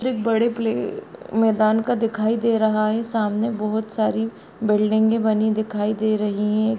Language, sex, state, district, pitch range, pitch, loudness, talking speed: Hindi, female, Bihar, Bhagalpur, 215-225 Hz, 220 Hz, -21 LUFS, 170 wpm